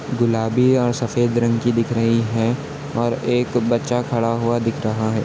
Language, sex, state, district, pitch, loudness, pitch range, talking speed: Hindi, male, Chhattisgarh, Balrampur, 120 Hz, -20 LUFS, 115-120 Hz, 185 wpm